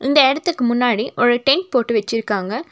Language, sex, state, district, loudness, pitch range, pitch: Tamil, female, Tamil Nadu, Nilgiris, -17 LUFS, 225-275 Hz, 245 Hz